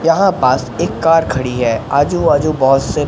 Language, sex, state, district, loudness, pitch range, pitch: Hindi, male, Madhya Pradesh, Katni, -14 LUFS, 130-165 Hz, 145 Hz